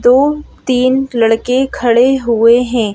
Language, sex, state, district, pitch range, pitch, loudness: Hindi, female, Madhya Pradesh, Bhopal, 235-265 Hz, 250 Hz, -12 LUFS